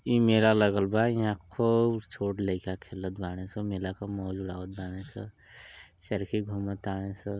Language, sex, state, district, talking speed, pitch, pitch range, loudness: Bhojpuri, male, Uttar Pradesh, Ghazipur, 170 wpm, 100 Hz, 95-105 Hz, -30 LUFS